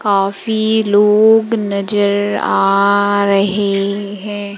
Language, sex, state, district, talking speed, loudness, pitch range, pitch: Hindi, female, Madhya Pradesh, Umaria, 80 wpm, -14 LUFS, 200-210 Hz, 205 Hz